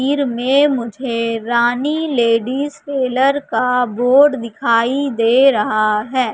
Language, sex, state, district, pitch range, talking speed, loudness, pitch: Hindi, female, Madhya Pradesh, Katni, 230-275 Hz, 115 wpm, -16 LUFS, 250 Hz